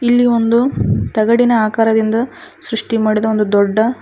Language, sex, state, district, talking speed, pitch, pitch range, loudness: Kannada, female, Karnataka, Koppal, 120 wpm, 225 Hz, 215-240 Hz, -14 LUFS